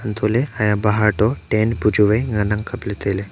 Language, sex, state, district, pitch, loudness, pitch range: Wancho, male, Arunachal Pradesh, Longding, 105 Hz, -19 LUFS, 105-115 Hz